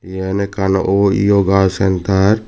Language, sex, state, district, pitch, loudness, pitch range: Chakma, male, Tripura, Dhalai, 95 Hz, -15 LUFS, 95-100 Hz